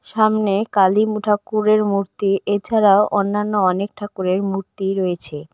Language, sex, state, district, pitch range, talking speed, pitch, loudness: Bengali, female, West Bengal, Cooch Behar, 195-210 Hz, 120 wpm, 200 Hz, -18 LUFS